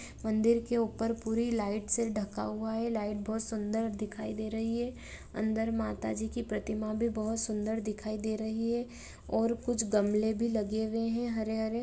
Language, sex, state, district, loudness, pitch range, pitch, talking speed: Hindi, female, Jharkhand, Jamtara, -33 LUFS, 215-230 Hz, 220 Hz, 190 wpm